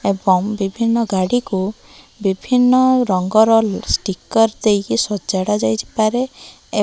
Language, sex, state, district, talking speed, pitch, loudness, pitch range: Odia, female, Odisha, Malkangiri, 90 wpm, 210 Hz, -17 LUFS, 190-230 Hz